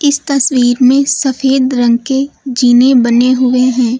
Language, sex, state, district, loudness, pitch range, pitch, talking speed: Hindi, female, Uttar Pradesh, Lucknow, -11 LUFS, 245-270 Hz, 255 Hz, 150 wpm